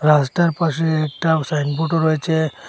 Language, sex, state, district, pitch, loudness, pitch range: Bengali, male, Assam, Hailakandi, 160 Hz, -19 LUFS, 150-165 Hz